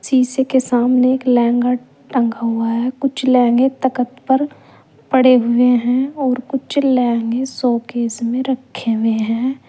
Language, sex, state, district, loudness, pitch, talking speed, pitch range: Hindi, female, Uttar Pradesh, Saharanpur, -16 LUFS, 250 Hz, 140 wpm, 235-260 Hz